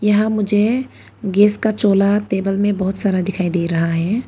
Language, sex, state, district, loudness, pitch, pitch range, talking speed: Hindi, female, Arunachal Pradesh, Papum Pare, -17 LUFS, 205 Hz, 190-210 Hz, 180 wpm